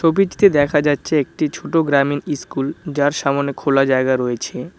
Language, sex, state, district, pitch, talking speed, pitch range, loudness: Bengali, male, West Bengal, Cooch Behar, 145 Hz, 150 wpm, 140-155 Hz, -18 LUFS